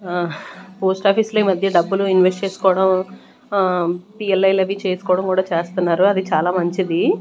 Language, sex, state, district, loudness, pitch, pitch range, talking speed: Telugu, female, Andhra Pradesh, Manyam, -18 LUFS, 190 Hz, 180-195 Hz, 150 wpm